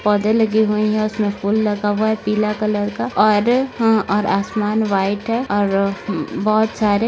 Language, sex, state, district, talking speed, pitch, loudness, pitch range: Hindi, female, Maharashtra, Nagpur, 195 wpm, 210 Hz, -18 LUFS, 205-220 Hz